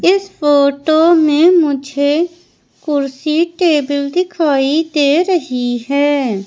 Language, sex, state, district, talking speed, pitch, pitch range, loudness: Hindi, female, Madhya Pradesh, Umaria, 95 wpm, 295 Hz, 280-340 Hz, -14 LUFS